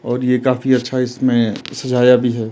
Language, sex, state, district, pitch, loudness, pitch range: Hindi, male, Himachal Pradesh, Shimla, 125 Hz, -16 LUFS, 120-130 Hz